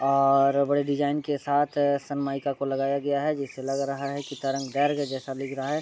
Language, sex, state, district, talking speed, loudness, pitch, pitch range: Hindi, male, Bihar, Sitamarhi, 215 wpm, -26 LUFS, 140 Hz, 135-145 Hz